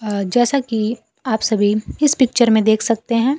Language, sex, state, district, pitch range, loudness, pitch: Hindi, female, Bihar, Kaimur, 220-245 Hz, -17 LUFS, 230 Hz